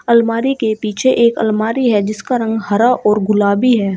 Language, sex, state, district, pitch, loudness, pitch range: Hindi, female, Uttar Pradesh, Shamli, 225 Hz, -14 LUFS, 210-240 Hz